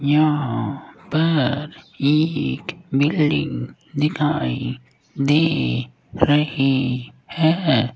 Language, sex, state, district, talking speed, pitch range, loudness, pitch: Hindi, male, Rajasthan, Jaipur, 60 wpm, 130-155 Hz, -20 LUFS, 145 Hz